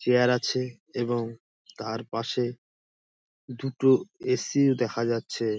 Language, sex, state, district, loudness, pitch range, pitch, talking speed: Bengali, male, West Bengal, Dakshin Dinajpur, -27 LUFS, 115-130 Hz, 125 Hz, 105 wpm